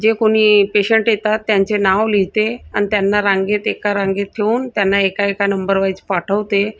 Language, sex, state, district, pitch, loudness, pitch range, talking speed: Marathi, female, Maharashtra, Gondia, 205 Hz, -16 LUFS, 200-215 Hz, 170 wpm